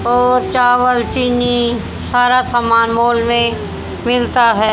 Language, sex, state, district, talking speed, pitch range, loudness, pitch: Hindi, female, Haryana, Jhajjar, 115 wpm, 235-245 Hz, -14 LUFS, 240 Hz